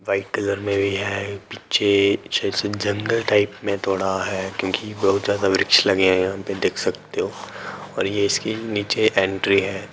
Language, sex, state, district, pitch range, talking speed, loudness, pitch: Hindi, male, Bihar, Begusarai, 95-100 Hz, 180 wpm, -21 LUFS, 100 Hz